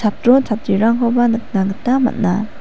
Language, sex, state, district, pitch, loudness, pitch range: Garo, female, Meghalaya, West Garo Hills, 225 Hz, -16 LUFS, 210-240 Hz